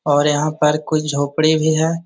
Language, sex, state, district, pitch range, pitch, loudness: Magahi, male, Bihar, Jahanabad, 150-155 Hz, 155 Hz, -17 LUFS